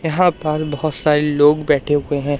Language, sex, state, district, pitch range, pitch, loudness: Hindi, male, Madhya Pradesh, Umaria, 145-155 Hz, 150 Hz, -17 LUFS